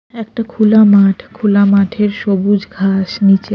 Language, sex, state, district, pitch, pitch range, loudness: Bengali, female, Odisha, Khordha, 200 Hz, 195-215 Hz, -12 LUFS